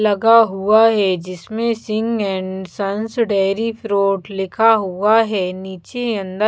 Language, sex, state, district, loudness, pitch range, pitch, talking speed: Hindi, female, Bihar, Patna, -17 LUFS, 195-225 Hz, 205 Hz, 130 wpm